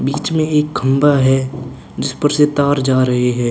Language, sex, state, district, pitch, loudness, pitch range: Hindi, male, Chhattisgarh, Korba, 135 Hz, -15 LUFS, 130-145 Hz